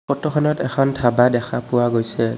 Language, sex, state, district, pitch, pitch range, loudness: Assamese, male, Assam, Kamrup Metropolitan, 125 Hz, 120-135 Hz, -19 LUFS